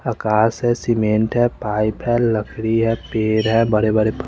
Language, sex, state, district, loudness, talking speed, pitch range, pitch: Hindi, male, Chandigarh, Chandigarh, -18 LUFS, 170 wpm, 110-120 Hz, 110 Hz